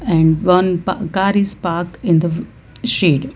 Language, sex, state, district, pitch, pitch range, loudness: English, female, Gujarat, Valsad, 180 Hz, 165-195 Hz, -16 LUFS